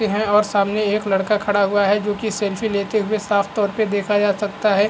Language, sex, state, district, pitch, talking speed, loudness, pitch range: Hindi, male, Bihar, Araria, 205 Hz, 235 wpm, -19 LUFS, 200-215 Hz